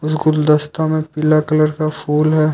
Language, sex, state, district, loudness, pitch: Hindi, male, Jharkhand, Ranchi, -16 LUFS, 155 Hz